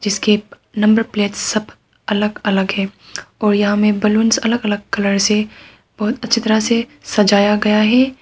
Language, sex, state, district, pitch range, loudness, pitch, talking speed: Hindi, female, Arunachal Pradesh, Papum Pare, 205-225 Hz, -16 LUFS, 210 Hz, 160 wpm